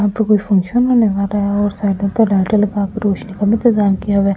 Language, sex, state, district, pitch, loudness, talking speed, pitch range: Hindi, female, Delhi, New Delhi, 205 Hz, -15 LUFS, 260 wpm, 200-215 Hz